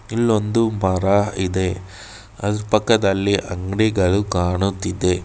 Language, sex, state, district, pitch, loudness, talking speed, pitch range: Kannada, male, Karnataka, Bangalore, 100 Hz, -19 LUFS, 80 wpm, 95-105 Hz